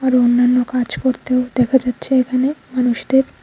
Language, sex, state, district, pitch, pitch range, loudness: Bengali, female, Tripura, Unakoti, 255 Hz, 245-260 Hz, -17 LUFS